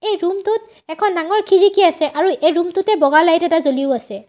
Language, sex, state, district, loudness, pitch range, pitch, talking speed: Assamese, female, Assam, Sonitpur, -16 LUFS, 310-400 Hz, 345 Hz, 225 wpm